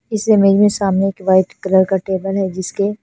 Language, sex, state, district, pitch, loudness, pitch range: Hindi, female, Punjab, Fazilka, 195 Hz, -15 LUFS, 190-200 Hz